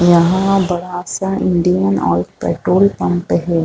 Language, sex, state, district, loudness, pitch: Hindi, female, Chhattisgarh, Rajnandgaon, -15 LUFS, 170 Hz